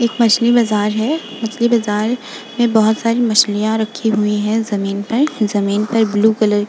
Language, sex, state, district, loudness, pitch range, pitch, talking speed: Hindi, female, Uttar Pradesh, Jalaun, -16 LUFS, 210-235 Hz, 220 Hz, 180 wpm